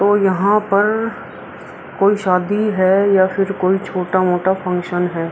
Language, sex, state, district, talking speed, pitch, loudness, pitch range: Hindi, female, Bihar, Araria, 135 wpm, 190 Hz, -16 LUFS, 185-200 Hz